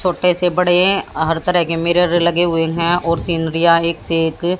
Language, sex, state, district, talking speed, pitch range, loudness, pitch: Hindi, female, Haryana, Jhajjar, 195 wpm, 165-180 Hz, -16 LUFS, 170 Hz